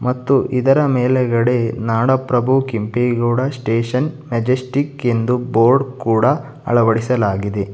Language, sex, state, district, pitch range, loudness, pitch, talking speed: Kannada, male, Karnataka, Bangalore, 115-130 Hz, -17 LUFS, 125 Hz, 85 wpm